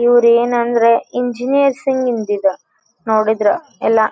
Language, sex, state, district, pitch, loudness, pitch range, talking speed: Kannada, female, Karnataka, Dharwad, 235 Hz, -15 LUFS, 220-250 Hz, 85 wpm